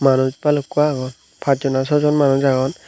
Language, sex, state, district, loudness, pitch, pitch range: Chakma, male, Tripura, Unakoti, -18 LUFS, 140 Hz, 130-150 Hz